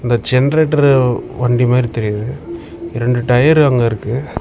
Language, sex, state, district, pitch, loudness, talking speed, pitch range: Tamil, male, Tamil Nadu, Namakkal, 125 Hz, -14 LUFS, 110 wpm, 120-140 Hz